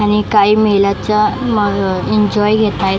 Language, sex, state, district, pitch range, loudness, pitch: Marathi, female, Maharashtra, Mumbai Suburban, 200-210 Hz, -13 LUFS, 210 Hz